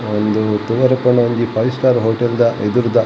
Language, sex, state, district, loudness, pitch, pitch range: Tulu, male, Karnataka, Dakshina Kannada, -15 LUFS, 120 Hz, 110-125 Hz